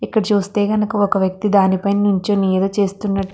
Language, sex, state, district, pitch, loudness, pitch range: Telugu, female, Andhra Pradesh, Krishna, 200 Hz, -17 LUFS, 195-205 Hz